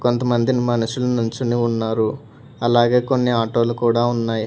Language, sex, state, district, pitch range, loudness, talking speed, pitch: Telugu, male, Telangana, Hyderabad, 115-125 Hz, -19 LUFS, 135 wpm, 120 Hz